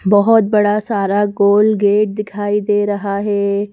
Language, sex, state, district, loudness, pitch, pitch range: Hindi, female, Madhya Pradesh, Bhopal, -15 LUFS, 205 Hz, 200-210 Hz